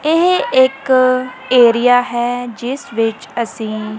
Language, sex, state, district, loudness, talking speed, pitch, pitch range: Punjabi, female, Punjab, Kapurthala, -15 LUFS, 105 wpm, 245 Hz, 235-260 Hz